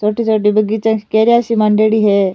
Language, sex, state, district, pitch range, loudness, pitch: Rajasthani, female, Rajasthan, Nagaur, 210-220 Hz, -13 LUFS, 215 Hz